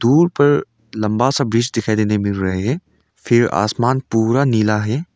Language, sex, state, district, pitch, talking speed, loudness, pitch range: Hindi, male, Arunachal Pradesh, Longding, 115 Hz, 175 wpm, -17 LUFS, 105-135 Hz